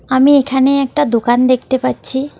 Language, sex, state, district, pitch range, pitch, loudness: Bengali, female, West Bengal, Alipurduar, 255-275 Hz, 260 Hz, -13 LUFS